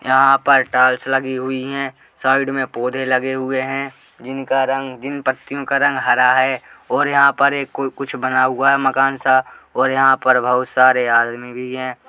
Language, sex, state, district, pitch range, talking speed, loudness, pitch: Hindi, male, Uttar Pradesh, Jalaun, 130-135 Hz, 190 wpm, -17 LUFS, 130 Hz